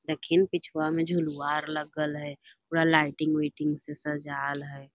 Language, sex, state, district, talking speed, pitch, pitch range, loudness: Magahi, female, Bihar, Lakhisarai, 155 wpm, 150 Hz, 145-155 Hz, -28 LUFS